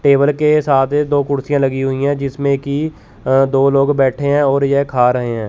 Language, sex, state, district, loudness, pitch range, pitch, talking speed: Hindi, male, Chandigarh, Chandigarh, -15 LUFS, 135-145 Hz, 140 Hz, 220 wpm